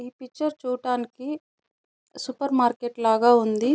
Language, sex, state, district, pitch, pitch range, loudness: Telugu, female, Andhra Pradesh, Chittoor, 250 Hz, 240-275 Hz, -24 LUFS